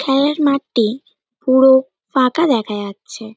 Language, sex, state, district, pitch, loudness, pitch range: Bengali, male, West Bengal, North 24 Parganas, 260 Hz, -16 LUFS, 220-280 Hz